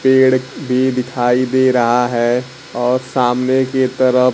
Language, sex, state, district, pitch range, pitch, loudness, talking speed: Hindi, male, Bihar, Kaimur, 125-130 Hz, 125 Hz, -15 LUFS, 140 wpm